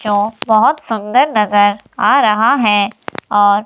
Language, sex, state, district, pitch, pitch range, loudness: Hindi, female, Himachal Pradesh, Shimla, 210 Hz, 205-220 Hz, -13 LUFS